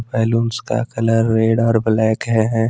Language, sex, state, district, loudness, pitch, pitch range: Hindi, male, Jharkhand, Deoghar, -17 LUFS, 115 Hz, 110-115 Hz